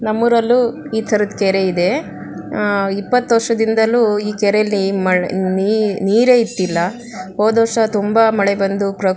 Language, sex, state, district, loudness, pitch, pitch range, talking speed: Kannada, female, Karnataka, Shimoga, -16 LUFS, 210 Hz, 195-225 Hz, 120 wpm